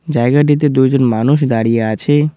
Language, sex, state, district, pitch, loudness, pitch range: Bengali, male, West Bengal, Cooch Behar, 135 Hz, -13 LUFS, 115-145 Hz